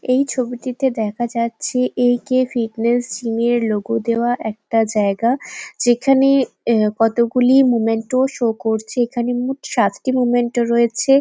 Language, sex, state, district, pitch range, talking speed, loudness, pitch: Bengali, female, West Bengal, Jalpaiguri, 230-255 Hz, 135 wpm, -18 LUFS, 240 Hz